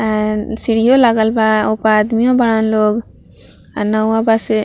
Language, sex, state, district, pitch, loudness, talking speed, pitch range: Bhojpuri, female, Bihar, Gopalganj, 220 Hz, -14 LUFS, 170 wpm, 215-225 Hz